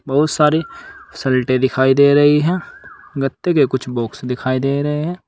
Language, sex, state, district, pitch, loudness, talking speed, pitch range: Hindi, male, Uttar Pradesh, Saharanpur, 140 Hz, -16 LUFS, 170 wpm, 130-150 Hz